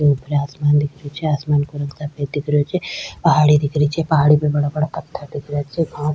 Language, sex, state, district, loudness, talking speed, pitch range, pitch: Rajasthani, female, Rajasthan, Nagaur, -19 LUFS, 255 wpm, 145-150 Hz, 150 Hz